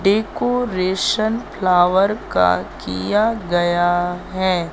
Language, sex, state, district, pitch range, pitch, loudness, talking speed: Hindi, female, Madhya Pradesh, Katni, 175-210 Hz, 185 Hz, -18 LUFS, 75 wpm